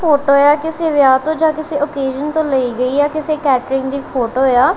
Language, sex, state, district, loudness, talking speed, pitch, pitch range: Punjabi, female, Punjab, Kapurthala, -15 LUFS, 215 wpm, 285 Hz, 265-310 Hz